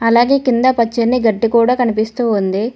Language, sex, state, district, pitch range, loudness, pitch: Telugu, female, Telangana, Hyderabad, 225-245 Hz, -14 LUFS, 235 Hz